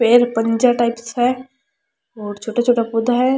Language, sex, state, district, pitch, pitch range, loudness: Rajasthani, female, Rajasthan, Churu, 240 Hz, 230-250 Hz, -17 LUFS